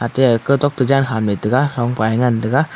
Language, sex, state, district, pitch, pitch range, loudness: Wancho, male, Arunachal Pradesh, Longding, 125 Hz, 115-135 Hz, -16 LUFS